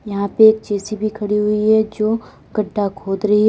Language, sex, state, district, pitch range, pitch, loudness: Hindi, female, Uttar Pradesh, Lalitpur, 205-220 Hz, 210 Hz, -18 LUFS